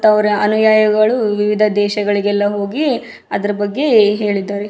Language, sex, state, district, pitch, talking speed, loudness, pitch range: Kannada, female, Karnataka, Raichur, 210 Hz, 100 wpm, -15 LUFS, 205-215 Hz